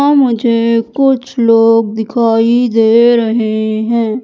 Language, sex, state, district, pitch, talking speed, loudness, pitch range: Hindi, female, Madhya Pradesh, Katni, 230 Hz, 100 wpm, -11 LUFS, 225-240 Hz